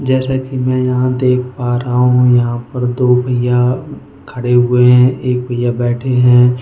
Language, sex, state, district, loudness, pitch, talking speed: Hindi, male, Goa, North and South Goa, -13 LUFS, 125 Hz, 170 wpm